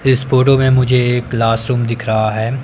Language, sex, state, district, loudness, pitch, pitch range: Hindi, male, Himachal Pradesh, Shimla, -14 LUFS, 125 Hz, 115-130 Hz